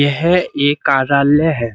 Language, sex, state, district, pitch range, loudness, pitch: Hindi, male, Uttar Pradesh, Budaun, 140-155 Hz, -14 LUFS, 145 Hz